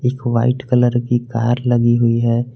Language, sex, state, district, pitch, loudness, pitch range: Hindi, male, Jharkhand, Garhwa, 120 Hz, -16 LUFS, 120-125 Hz